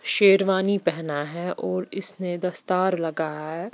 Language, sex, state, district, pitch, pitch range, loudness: Hindi, female, Bihar, Patna, 180 Hz, 160-190 Hz, -18 LUFS